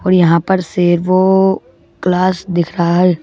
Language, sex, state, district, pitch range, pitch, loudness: Hindi, male, Madhya Pradesh, Bhopal, 175-185 Hz, 180 Hz, -13 LUFS